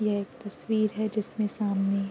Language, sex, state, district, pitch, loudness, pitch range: Hindi, female, Uttar Pradesh, Deoria, 210 Hz, -29 LUFS, 200-215 Hz